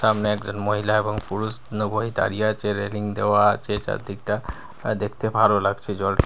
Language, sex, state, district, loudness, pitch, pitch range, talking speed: Bengali, male, Bihar, Katihar, -23 LUFS, 105 Hz, 105-110 Hz, 170 wpm